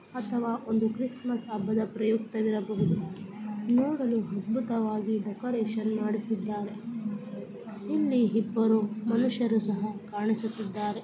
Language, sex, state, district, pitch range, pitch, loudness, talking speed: Kannada, female, Karnataka, Belgaum, 210-230 Hz, 220 Hz, -30 LUFS, 90 wpm